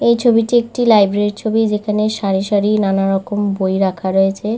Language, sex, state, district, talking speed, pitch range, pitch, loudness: Bengali, female, West Bengal, Malda, 155 wpm, 195-220 Hz, 205 Hz, -15 LUFS